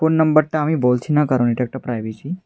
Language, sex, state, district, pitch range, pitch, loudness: Bengali, male, Tripura, West Tripura, 125-155 Hz, 145 Hz, -18 LUFS